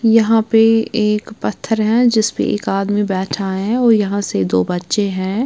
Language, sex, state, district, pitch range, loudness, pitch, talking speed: Hindi, female, Bihar, West Champaran, 195-225 Hz, -16 LUFS, 210 Hz, 185 wpm